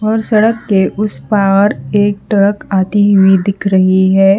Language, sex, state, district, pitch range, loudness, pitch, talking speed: Hindi, female, Haryana, Charkhi Dadri, 195-210 Hz, -12 LUFS, 200 Hz, 165 wpm